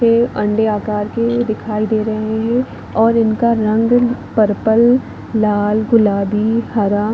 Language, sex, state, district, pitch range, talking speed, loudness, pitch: Hindi, female, Chhattisgarh, Bilaspur, 210-230 Hz, 125 wpm, -15 LUFS, 220 Hz